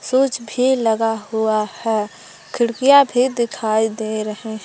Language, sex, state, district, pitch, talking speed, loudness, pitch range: Hindi, female, Jharkhand, Palamu, 225 Hz, 130 wpm, -18 LUFS, 220-245 Hz